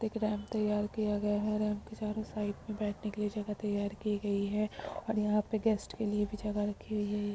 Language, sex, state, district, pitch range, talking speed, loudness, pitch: Hindi, female, Bihar, Araria, 205-215 Hz, 255 wpm, -34 LUFS, 210 Hz